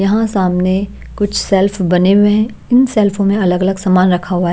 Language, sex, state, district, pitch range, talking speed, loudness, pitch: Hindi, female, Himachal Pradesh, Shimla, 185-205 Hz, 200 wpm, -13 LUFS, 195 Hz